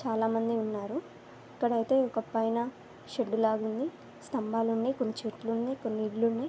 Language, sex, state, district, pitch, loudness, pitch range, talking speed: Telugu, female, Andhra Pradesh, Anantapur, 225 Hz, -31 LUFS, 225-245 Hz, 130 wpm